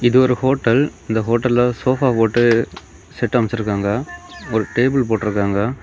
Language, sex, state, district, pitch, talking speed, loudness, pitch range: Tamil, male, Tamil Nadu, Kanyakumari, 120 Hz, 125 wpm, -18 LUFS, 110-130 Hz